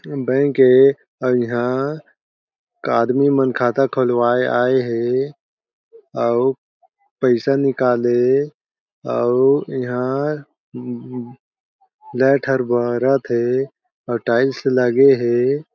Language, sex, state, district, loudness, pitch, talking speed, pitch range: Chhattisgarhi, male, Chhattisgarh, Jashpur, -18 LUFS, 130 Hz, 95 wpm, 120-140 Hz